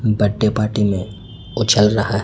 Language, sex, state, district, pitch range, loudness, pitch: Hindi, male, Chhattisgarh, Raipur, 100-110 Hz, -17 LUFS, 105 Hz